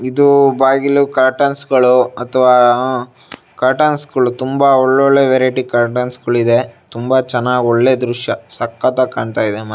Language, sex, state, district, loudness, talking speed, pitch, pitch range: Kannada, male, Karnataka, Shimoga, -13 LUFS, 140 wpm, 130 Hz, 125-135 Hz